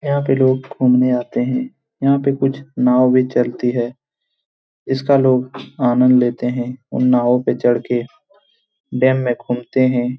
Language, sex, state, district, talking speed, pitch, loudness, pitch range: Hindi, male, Bihar, Jamui, 160 wpm, 130 Hz, -17 LUFS, 125-135 Hz